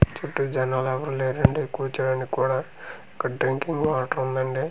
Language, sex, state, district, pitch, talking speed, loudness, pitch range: Telugu, male, Andhra Pradesh, Manyam, 130 Hz, 130 wpm, -25 LUFS, 130-135 Hz